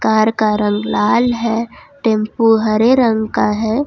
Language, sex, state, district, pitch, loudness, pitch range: Hindi, female, Jharkhand, Ranchi, 220 Hz, -15 LUFS, 215-235 Hz